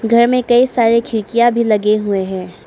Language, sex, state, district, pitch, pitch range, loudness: Hindi, male, Arunachal Pradesh, Papum Pare, 230 Hz, 210-235 Hz, -14 LUFS